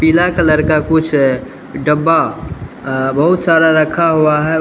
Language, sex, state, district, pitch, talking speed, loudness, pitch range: Hindi, male, Uttar Pradesh, Lalitpur, 155 Hz, 145 wpm, -13 LUFS, 150-165 Hz